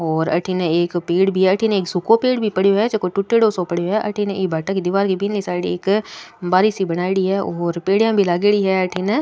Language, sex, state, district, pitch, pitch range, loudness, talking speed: Rajasthani, female, Rajasthan, Nagaur, 190 Hz, 180-205 Hz, -18 LUFS, 240 wpm